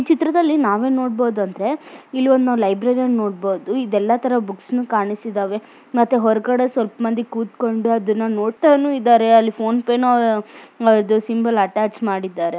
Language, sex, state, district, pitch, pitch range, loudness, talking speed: Kannada, female, Karnataka, Mysore, 230 Hz, 215-250 Hz, -18 LUFS, 90 wpm